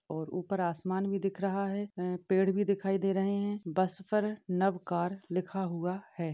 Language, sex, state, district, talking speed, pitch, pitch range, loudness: Hindi, female, Maharashtra, Dhule, 180 wpm, 190 Hz, 180-195 Hz, -33 LUFS